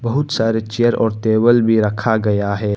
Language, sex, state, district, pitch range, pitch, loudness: Hindi, male, Arunachal Pradesh, Papum Pare, 105-120 Hz, 110 Hz, -16 LUFS